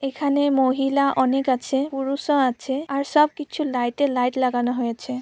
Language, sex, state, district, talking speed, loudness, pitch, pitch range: Bengali, female, West Bengal, Purulia, 140 wpm, -22 LUFS, 270 Hz, 255-280 Hz